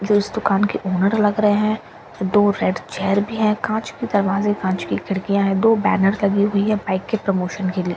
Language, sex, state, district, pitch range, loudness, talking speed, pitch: Hindi, female, Bihar, Katihar, 195-210 Hz, -19 LUFS, 225 wpm, 200 Hz